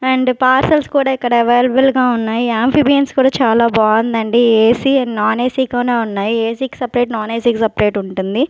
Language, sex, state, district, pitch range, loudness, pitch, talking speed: Telugu, female, Andhra Pradesh, Sri Satya Sai, 225-260 Hz, -14 LUFS, 240 Hz, 175 wpm